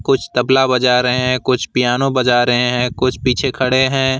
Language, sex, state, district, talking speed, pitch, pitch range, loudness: Hindi, male, West Bengal, Alipurduar, 200 wpm, 125 Hz, 125-130 Hz, -15 LUFS